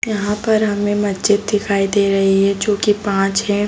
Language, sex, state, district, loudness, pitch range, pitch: Hindi, female, Bihar, Saran, -16 LUFS, 200-210 Hz, 205 Hz